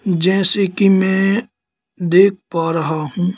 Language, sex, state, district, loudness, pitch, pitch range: Hindi, male, Madhya Pradesh, Katni, -16 LUFS, 190 Hz, 175-195 Hz